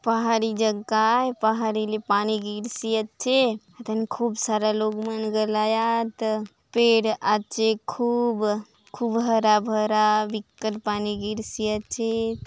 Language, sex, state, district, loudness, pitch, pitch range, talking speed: Halbi, female, Chhattisgarh, Bastar, -24 LUFS, 220 Hz, 215-230 Hz, 115 wpm